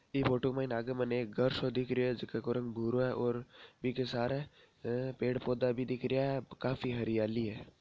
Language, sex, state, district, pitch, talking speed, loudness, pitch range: Marwari, male, Rajasthan, Nagaur, 125 Hz, 200 wpm, -35 LUFS, 120-130 Hz